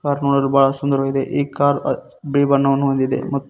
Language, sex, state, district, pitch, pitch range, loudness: Kannada, male, Karnataka, Koppal, 140 Hz, 135-140 Hz, -18 LUFS